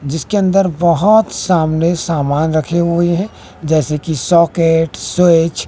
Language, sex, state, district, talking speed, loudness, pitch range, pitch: Hindi, male, Bihar, West Champaran, 135 wpm, -14 LUFS, 160-175 Hz, 170 Hz